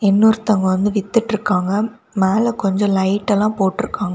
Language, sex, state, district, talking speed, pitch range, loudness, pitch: Tamil, female, Tamil Nadu, Kanyakumari, 145 wpm, 195-220 Hz, -17 LUFS, 205 Hz